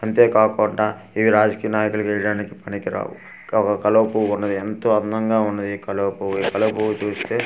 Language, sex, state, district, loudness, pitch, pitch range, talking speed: Telugu, male, Andhra Pradesh, Manyam, -20 LUFS, 105 Hz, 105-110 Hz, 185 wpm